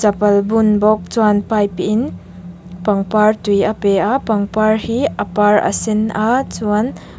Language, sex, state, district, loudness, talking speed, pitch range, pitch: Mizo, female, Mizoram, Aizawl, -15 LUFS, 160 wpm, 200-220 Hz, 210 Hz